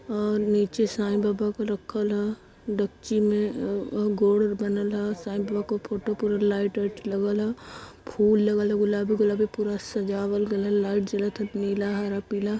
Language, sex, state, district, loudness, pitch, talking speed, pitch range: Awadhi, female, Uttar Pradesh, Varanasi, -26 LUFS, 210 Hz, 170 wpm, 205-210 Hz